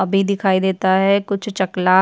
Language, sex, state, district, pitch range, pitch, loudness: Hindi, female, Chhattisgarh, Jashpur, 190-200 Hz, 190 Hz, -17 LUFS